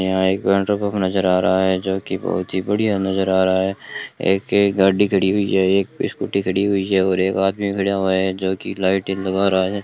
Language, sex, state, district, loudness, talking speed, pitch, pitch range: Hindi, male, Rajasthan, Bikaner, -19 LUFS, 240 wpm, 95 Hz, 95-100 Hz